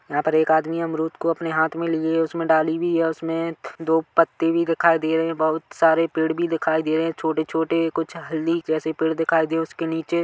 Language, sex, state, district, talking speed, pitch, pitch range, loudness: Hindi, male, Chhattisgarh, Kabirdham, 245 wpm, 160 Hz, 160-165 Hz, -22 LUFS